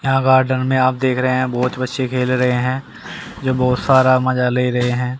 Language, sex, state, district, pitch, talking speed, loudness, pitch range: Hindi, male, Haryana, Rohtak, 130 Hz, 220 wpm, -17 LUFS, 125-130 Hz